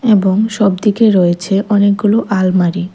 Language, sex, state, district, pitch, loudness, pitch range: Bengali, female, Tripura, West Tripura, 200 Hz, -12 LUFS, 185-210 Hz